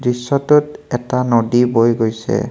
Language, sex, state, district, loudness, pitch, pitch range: Assamese, male, Assam, Kamrup Metropolitan, -16 LUFS, 125 Hz, 115-125 Hz